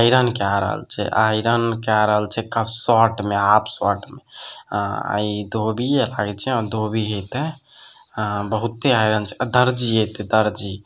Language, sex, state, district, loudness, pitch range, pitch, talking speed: Maithili, male, Bihar, Samastipur, -20 LUFS, 105-115 Hz, 110 Hz, 90 wpm